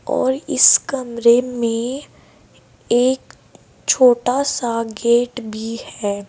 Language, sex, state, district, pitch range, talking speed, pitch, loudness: Hindi, female, Uttar Pradesh, Saharanpur, 230-260 Hz, 95 wpm, 240 Hz, -17 LUFS